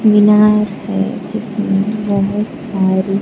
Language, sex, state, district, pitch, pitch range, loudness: Hindi, female, Bihar, Kaimur, 210 Hz, 195-215 Hz, -15 LUFS